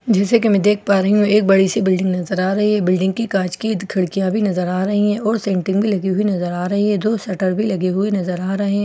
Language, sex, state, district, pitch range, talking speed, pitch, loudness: Hindi, female, Bihar, Katihar, 185-210 Hz, 290 wpm, 195 Hz, -17 LUFS